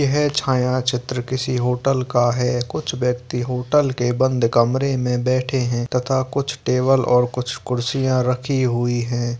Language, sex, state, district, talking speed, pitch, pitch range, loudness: Hindi, male, Bihar, Begusarai, 160 wpm, 125 Hz, 125-130 Hz, -20 LUFS